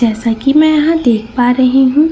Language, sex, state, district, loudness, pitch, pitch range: Hindi, female, Bihar, Katihar, -11 LUFS, 255 Hz, 235-300 Hz